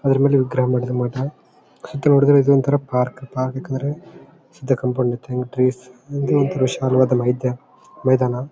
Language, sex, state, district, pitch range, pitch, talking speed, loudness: Kannada, male, Karnataka, Bellary, 125-140 Hz, 130 Hz, 135 wpm, -19 LUFS